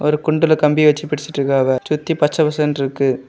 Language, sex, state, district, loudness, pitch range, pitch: Tamil, male, Tamil Nadu, Kanyakumari, -17 LUFS, 140-155 Hz, 150 Hz